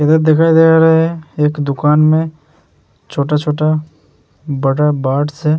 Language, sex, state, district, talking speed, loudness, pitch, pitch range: Hindi, male, Bihar, Vaishali, 130 wpm, -13 LUFS, 150 Hz, 145-155 Hz